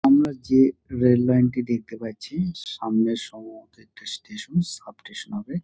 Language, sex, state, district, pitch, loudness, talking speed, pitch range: Bengali, male, West Bengal, Dakshin Dinajpur, 125 Hz, -23 LUFS, 170 wpm, 115-175 Hz